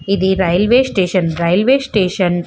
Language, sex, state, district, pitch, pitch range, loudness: Telugu, female, Andhra Pradesh, Visakhapatnam, 190 Hz, 180-205 Hz, -14 LUFS